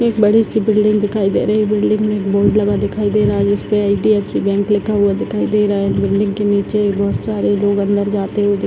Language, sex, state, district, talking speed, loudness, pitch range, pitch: Hindi, female, Bihar, Purnia, 235 wpm, -15 LUFS, 200-210 Hz, 205 Hz